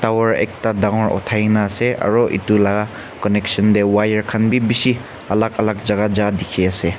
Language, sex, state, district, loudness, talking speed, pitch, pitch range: Nagamese, male, Nagaland, Kohima, -17 LUFS, 170 wpm, 105 Hz, 105-110 Hz